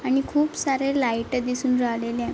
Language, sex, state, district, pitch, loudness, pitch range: Marathi, female, Maharashtra, Chandrapur, 255 Hz, -24 LUFS, 240-275 Hz